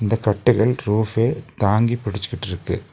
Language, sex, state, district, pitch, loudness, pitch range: Tamil, male, Tamil Nadu, Nilgiris, 110 Hz, -20 LUFS, 105-120 Hz